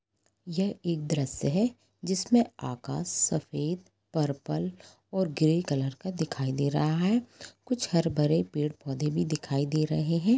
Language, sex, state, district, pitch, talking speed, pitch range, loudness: Hindi, female, Jharkhand, Jamtara, 155 Hz, 150 wpm, 145-185 Hz, -29 LUFS